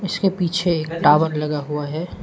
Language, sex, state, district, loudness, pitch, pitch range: Hindi, male, Arunachal Pradesh, Lower Dibang Valley, -20 LUFS, 160 Hz, 150-175 Hz